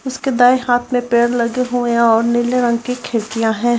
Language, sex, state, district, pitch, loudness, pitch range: Hindi, female, Uttar Pradesh, Jyotiba Phule Nagar, 240 Hz, -16 LUFS, 235-250 Hz